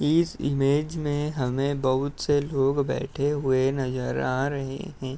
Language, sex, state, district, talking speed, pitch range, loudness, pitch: Hindi, male, Uttar Pradesh, Etah, 150 wpm, 130-145 Hz, -26 LUFS, 140 Hz